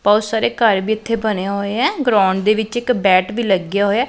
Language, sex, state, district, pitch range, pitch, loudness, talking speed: Punjabi, female, Punjab, Pathankot, 200-230 Hz, 215 Hz, -17 LUFS, 250 wpm